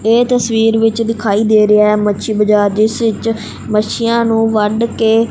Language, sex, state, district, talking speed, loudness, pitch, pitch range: Punjabi, male, Punjab, Fazilka, 160 wpm, -13 LUFS, 225 Hz, 210-225 Hz